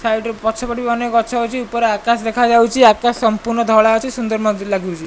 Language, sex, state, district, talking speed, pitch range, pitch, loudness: Odia, male, Odisha, Malkangiri, 215 wpm, 220-235 Hz, 230 Hz, -16 LUFS